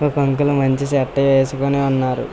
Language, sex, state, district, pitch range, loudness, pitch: Telugu, male, Andhra Pradesh, Visakhapatnam, 135-140 Hz, -17 LUFS, 140 Hz